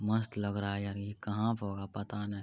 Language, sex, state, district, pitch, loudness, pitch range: Hindi, male, Bihar, Araria, 100 Hz, -36 LUFS, 100-105 Hz